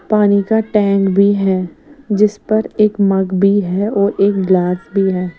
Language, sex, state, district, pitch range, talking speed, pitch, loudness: Hindi, female, Odisha, Sambalpur, 190-210 Hz, 180 wpm, 200 Hz, -14 LUFS